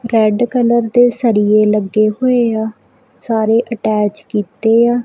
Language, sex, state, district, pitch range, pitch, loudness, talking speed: Punjabi, female, Punjab, Kapurthala, 215-240 Hz, 225 Hz, -14 LUFS, 130 wpm